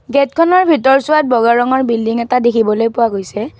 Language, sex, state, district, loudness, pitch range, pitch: Assamese, female, Assam, Kamrup Metropolitan, -13 LUFS, 230-275 Hz, 245 Hz